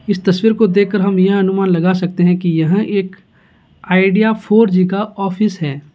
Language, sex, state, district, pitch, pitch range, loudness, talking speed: Hindi, male, Bihar, Gaya, 195 Hz, 180-205 Hz, -14 LUFS, 200 wpm